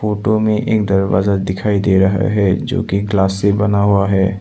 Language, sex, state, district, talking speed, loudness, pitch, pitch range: Hindi, male, Assam, Sonitpur, 205 wpm, -15 LUFS, 100 Hz, 95-105 Hz